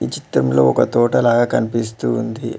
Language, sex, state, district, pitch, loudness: Telugu, male, Telangana, Mahabubabad, 110 Hz, -17 LUFS